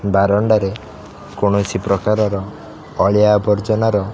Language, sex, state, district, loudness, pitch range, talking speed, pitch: Odia, male, Odisha, Khordha, -16 LUFS, 100-105 Hz, 115 wpm, 105 Hz